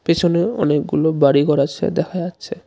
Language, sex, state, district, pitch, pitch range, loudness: Bengali, male, West Bengal, Darjeeling, 170 Hz, 150-175 Hz, -18 LUFS